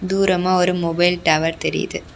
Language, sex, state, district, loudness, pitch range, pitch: Tamil, female, Tamil Nadu, Kanyakumari, -18 LUFS, 165-185 Hz, 180 Hz